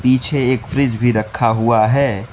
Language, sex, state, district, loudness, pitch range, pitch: Hindi, male, Mizoram, Aizawl, -16 LUFS, 110-130 Hz, 120 Hz